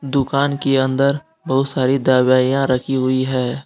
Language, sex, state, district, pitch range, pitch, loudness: Hindi, male, Jharkhand, Deoghar, 130-140 Hz, 135 Hz, -17 LUFS